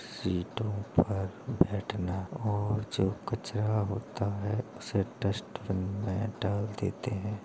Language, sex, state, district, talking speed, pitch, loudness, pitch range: Hindi, male, Uttar Pradesh, Hamirpur, 115 wpm, 100 Hz, -33 LUFS, 95-105 Hz